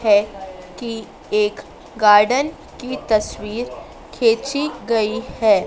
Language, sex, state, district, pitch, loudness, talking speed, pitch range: Hindi, female, Madhya Pradesh, Dhar, 230 Hz, -19 LUFS, 95 wpm, 210-270 Hz